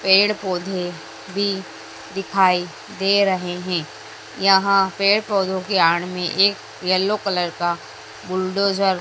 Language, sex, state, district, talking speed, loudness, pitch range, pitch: Hindi, female, Madhya Pradesh, Dhar, 125 wpm, -20 LUFS, 180-195 Hz, 190 Hz